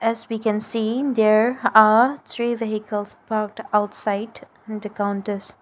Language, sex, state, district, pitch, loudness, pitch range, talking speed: English, female, Nagaland, Dimapur, 215 Hz, -21 LUFS, 210-225 Hz, 130 wpm